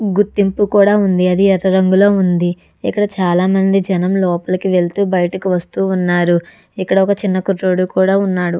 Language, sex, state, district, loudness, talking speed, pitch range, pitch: Telugu, female, Andhra Pradesh, Chittoor, -14 LUFS, 155 wpm, 180-195 Hz, 190 Hz